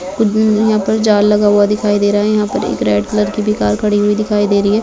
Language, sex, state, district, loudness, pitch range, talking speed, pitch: Hindi, female, Bihar, Begusarai, -13 LUFS, 205-215 Hz, 275 wpm, 210 Hz